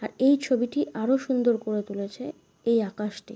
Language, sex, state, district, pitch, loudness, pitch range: Bengali, female, West Bengal, Paschim Medinipur, 235 Hz, -26 LUFS, 215-265 Hz